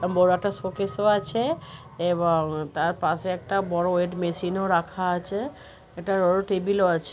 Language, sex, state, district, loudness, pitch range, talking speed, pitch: Bengali, female, West Bengal, Dakshin Dinajpur, -25 LUFS, 170-195 Hz, 175 wpm, 180 Hz